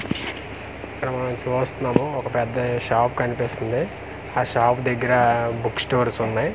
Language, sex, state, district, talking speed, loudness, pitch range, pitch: Telugu, male, Andhra Pradesh, Manyam, 120 wpm, -23 LUFS, 120-125 Hz, 120 Hz